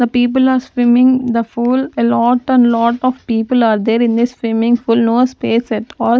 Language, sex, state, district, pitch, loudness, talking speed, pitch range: English, female, Punjab, Kapurthala, 240 Hz, -14 LUFS, 215 wpm, 230-250 Hz